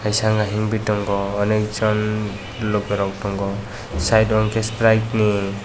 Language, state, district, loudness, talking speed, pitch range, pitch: Kokborok, Tripura, West Tripura, -20 LUFS, 150 wpm, 100-110 Hz, 105 Hz